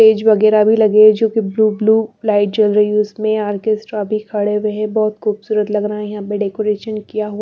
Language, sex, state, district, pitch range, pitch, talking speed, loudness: Hindi, female, Bihar, Katihar, 210-215 Hz, 215 Hz, 235 wpm, -15 LUFS